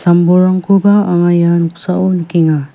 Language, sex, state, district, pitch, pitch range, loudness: Garo, female, Meghalaya, West Garo Hills, 175 Hz, 170-185 Hz, -11 LUFS